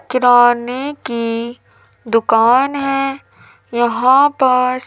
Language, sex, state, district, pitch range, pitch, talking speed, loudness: Hindi, female, Madhya Pradesh, Umaria, 235-270 Hz, 250 Hz, 75 wpm, -14 LUFS